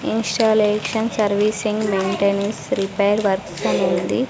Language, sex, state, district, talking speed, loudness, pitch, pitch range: Telugu, female, Andhra Pradesh, Sri Satya Sai, 85 wpm, -19 LUFS, 210 Hz, 200-220 Hz